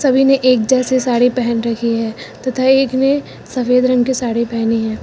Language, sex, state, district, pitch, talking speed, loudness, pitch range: Hindi, female, Uttar Pradesh, Lucknow, 250 Hz, 205 wpm, -15 LUFS, 235-260 Hz